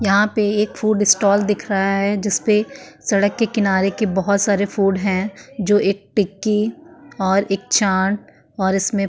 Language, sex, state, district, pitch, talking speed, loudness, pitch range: Hindi, female, Uttarakhand, Tehri Garhwal, 200 Hz, 170 wpm, -18 LUFS, 195-210 Hz